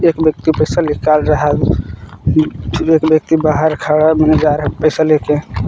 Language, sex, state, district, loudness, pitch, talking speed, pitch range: Hindi, male, Jharkhand, Palamu, -13 LUFS, 155 Hz, 170 wpm, 145-155 Hz